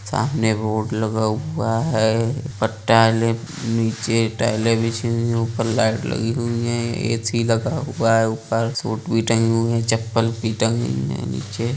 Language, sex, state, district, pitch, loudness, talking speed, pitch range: Hindi, male, Uttar Pradesh, Budaun, 115 Hz, -20 LUFS, 175 wpm, 110-115 Hz